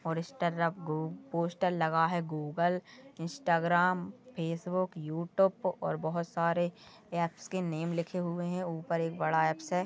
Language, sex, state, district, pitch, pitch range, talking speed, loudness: Hindi, female, Goa, North and South Goa, 170 Hz, 165-180 Hz, 145 wpm, -32 LUFS